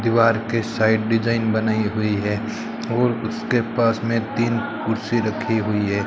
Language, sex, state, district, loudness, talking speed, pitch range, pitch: Hindi, male, Rajasthan, Bikaner, -21 LUFS, 160 wpm, 110-115 Hz, 115 Hz